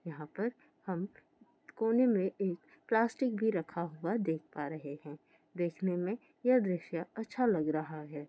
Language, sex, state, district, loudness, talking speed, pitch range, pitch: Hindi, female, Rajasthan, Churu, -34 LUFS, 160 wpm, 160-230 Hz, 185 Hz